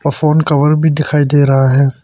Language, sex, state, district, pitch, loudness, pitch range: Hindi, male, Arunachal Pradesh, Papum Pare, 145 Hz, -11 LUFS, 140-150 Hz